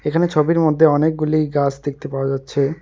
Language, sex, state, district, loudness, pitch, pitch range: Bengali, male, West Bengal, Alipurduar, -18 LUFS, 150 Hz, 140-155 Hz